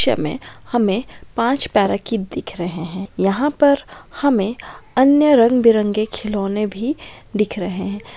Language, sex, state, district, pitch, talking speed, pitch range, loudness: Maithili, female, Bihar, Darbhanga, 215 Hz, 140 wpm, 195-260 Hz, -18 LUFS